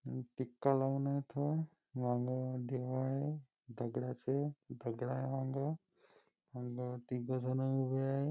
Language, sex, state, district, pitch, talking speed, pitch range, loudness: Marathi, male, Maharashtra, Nagpur, 130 Hz, 110 wpm, 125-140 Hz, -39 LUFS